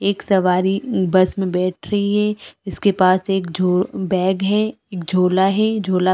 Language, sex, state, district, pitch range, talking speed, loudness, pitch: Hindi, female, Chhattisgarh, Balrampur, 185-200 Hz, 175 wpm, -18 LUFS, 190 Hz